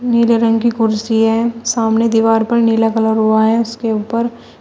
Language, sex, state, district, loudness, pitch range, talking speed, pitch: Hindi, female, Uttar Pradesh, Shamli, -14 LUFS, 225-230 Hz, 180 wpm, 225 Hz